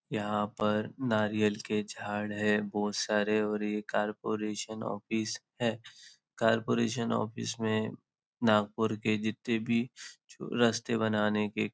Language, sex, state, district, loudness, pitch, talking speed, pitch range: Hindi, male, Maharashtra, Nagpur, -31 LUFS, 110 Hz, 125 wpm, 105-110 Hz